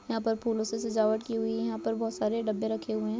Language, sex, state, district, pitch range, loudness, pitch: Hindi, female, Bihar, Darbhanga, 215-225 Hz, -30 LUFS, 220 Hz